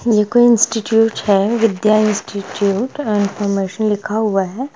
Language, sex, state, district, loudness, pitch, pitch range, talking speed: Hindi, female, Jharkhand, Jamtara, -16 LUFS, 215 Hz, 200-225 Hz, 125 wpm